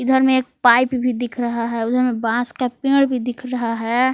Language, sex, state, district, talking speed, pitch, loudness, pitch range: Hindi, female, Jharkhand, Palamu, 260 wpm, 245 Hz, -19 LUFS, 235-255 Hz